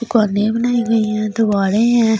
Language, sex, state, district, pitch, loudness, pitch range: Hindi, female, Delhi, New Delhi, 225 Hz, -16 LUFS, 215-230 Hz